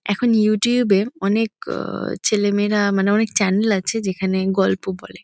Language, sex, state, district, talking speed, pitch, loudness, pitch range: Bengali, female, West Bengal, Kolkata, 150 wpm, 205 Hz, -19 LUFS, 195-215 Hz